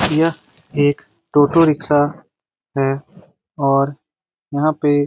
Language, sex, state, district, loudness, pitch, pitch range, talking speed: Hindi, male, Bihar, Saran, -18 LUFS, 145 Hz, 145-155 Hz, 105 wpm